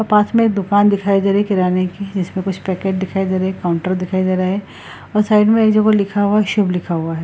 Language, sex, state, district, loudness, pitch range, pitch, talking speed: Hindi, female, Bihar, Lakhisarai, -16 LUFS, 185-205 Hz, 195 Hz, 305 wpm